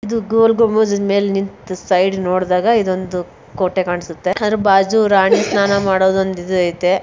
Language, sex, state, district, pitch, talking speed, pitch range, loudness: Kannada, female, Karnataka, Bijapur, 190 Hz, 155 wpm, 185-205 Hz, -16 LUFS